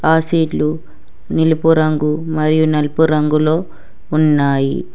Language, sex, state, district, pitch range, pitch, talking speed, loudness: Telugu, female, Telangana, Hyderabad, 150-160 Hz, 155 Hz, 95 wpm, -15 LUFS